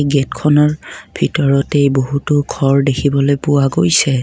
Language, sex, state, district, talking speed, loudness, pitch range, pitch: Assamese, male, Assam, Kamrup Metropolitan, 100 wpm, -14 LUFS, 135-145 Hz, 140 Hz